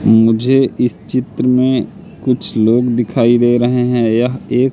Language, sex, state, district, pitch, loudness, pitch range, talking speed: Hindi, male, Madhya Pradesh, Katni, 120 Hz, -14 LUFS, 115-125 Hz, 150 wpm